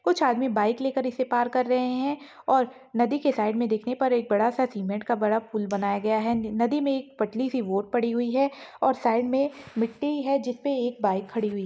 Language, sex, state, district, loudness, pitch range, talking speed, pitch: Hindi, female, Chhattisgarh, Rajnandgaon, -26 LUFS, 220-265 Hz, 230 wpm, 240 Hz